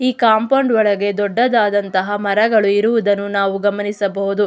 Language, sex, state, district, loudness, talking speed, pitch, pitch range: Kannada, female, Karnataka, Mysore, -16 LUFS, 105 wpm, 205 Hz, 200-220 Hz